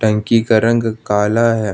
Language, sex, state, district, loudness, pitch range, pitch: Hindi, male, Jharkhand, Ranchi, -15 LUFS, 105-115 Hz, 110 Hz